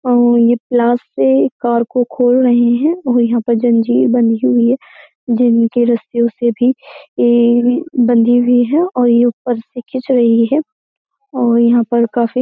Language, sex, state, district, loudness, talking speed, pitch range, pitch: Hindi, female, Uttar Pradesh, Jyotiba Phule Nagar, -13 LUFS, 170 wpm, 235-255 Hz, 240 Hz